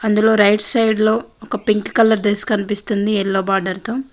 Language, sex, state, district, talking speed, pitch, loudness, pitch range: Telugu, female, Telangana, Mahabubabad, 175 wpm, 215 Hz, -16 LUFS, 205-225 Hz